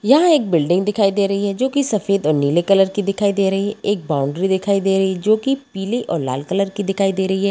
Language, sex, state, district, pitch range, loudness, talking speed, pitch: Hindi, female, Jharkhand, Sahebganj, 190-205 Hz, -18 LUFS, 280 wpm, 195 Hz